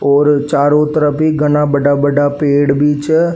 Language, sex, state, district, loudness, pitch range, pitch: Rajasthani, male, Rajasthan, Nagaur, -12 LUFS, 145-150 Hz, 145 Hz